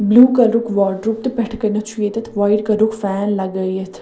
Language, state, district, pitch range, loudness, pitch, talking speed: Kashmiri, Punjab, Kapurthala, 200-225 Hz, -17 LUFS, 215 Hz, 180 wpm